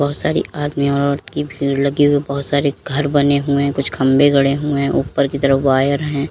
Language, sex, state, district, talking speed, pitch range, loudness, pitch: Hindi, female, Uttar Pradesh, Lalitpur, 210 wpm, 140-145 Hz, -17 LUFS, 140 Hz